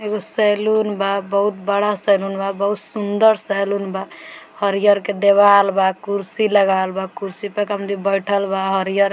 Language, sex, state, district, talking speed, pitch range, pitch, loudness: Bhojpuri, female, Bihar, Muzaffarpur, 170 wpm, 195-205 Hz, 200 Hz, -18 LUFS